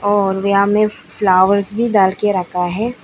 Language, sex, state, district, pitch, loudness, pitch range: Hindi, female, Arunachal Pradesh, Lower Dibang Valley, 200 Hz, -15 LUFS, 190-210 Hz